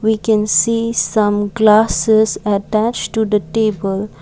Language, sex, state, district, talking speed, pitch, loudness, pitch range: English, female, Assam, Kamrup Metropolitan, 130 wpm, 215 Hz, -15 LUFS, 205-220 Hz